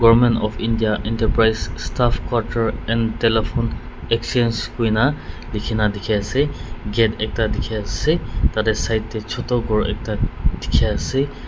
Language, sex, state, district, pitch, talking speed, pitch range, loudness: Nagamese, male, Nagaland, Dimapur, 110 Hz, 115 wpm, 105-115 Hz, -20 LUFS